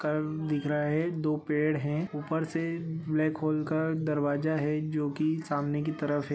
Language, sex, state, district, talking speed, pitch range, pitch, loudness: Hindi, male, Bihar, Bhagalpur, 190 wpm, 150-155 Hz, 155 Hz, -30 LUFS